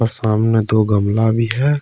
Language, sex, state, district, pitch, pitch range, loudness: Hindi, male, Jharkhand, Ranchi, 110 Hz, 110-115 Hz, -16 LUFS